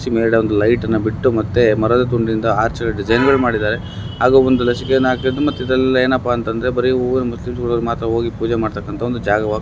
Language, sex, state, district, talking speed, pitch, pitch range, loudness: Kannada, male, Karnataka, Bellary, 170 wpm, 120 Hz, 110-125 Hz, -16 LUFS